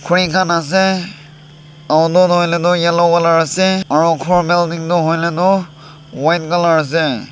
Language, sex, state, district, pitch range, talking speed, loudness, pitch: Nagamese, male, Nagaland, Dimapur, 160-180 Hz, 145 wpm, -14 LUFS, 170 Hz